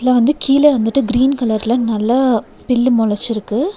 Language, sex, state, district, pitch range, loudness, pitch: Tamil, female, Tamil Nadu, Nilgiris, 225-265 Hz, -15 LUFS, 245 Hz